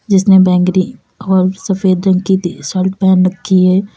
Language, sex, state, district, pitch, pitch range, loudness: Hindi, female, Uttar Pradesh, Lalitpur, 190 Hz, 185-190 Hz, -12 LUFS